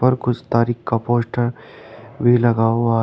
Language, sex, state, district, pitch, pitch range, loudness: Hindi, male, Uttar Pradesh, Shamli, 120 Hz, 115-120 Hz, -19 LUFS